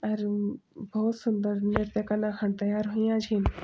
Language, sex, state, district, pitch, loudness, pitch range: Garhwali, female, Uttarakhand, Tehri Garhwal, 210 Hz, -29 LUFS, 205-220 Hz